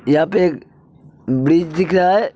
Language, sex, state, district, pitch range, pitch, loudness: Hindi, male, Uttar Pradesh, Hamirpur, 145-185 Hz, 165 Hz, -16 LUFS